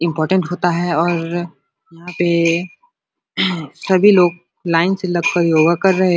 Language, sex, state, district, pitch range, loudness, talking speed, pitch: Hindi, male, Bihar, Supaul, 170-185 Hz, -16 LUFS, 155 wpm, 175 Hz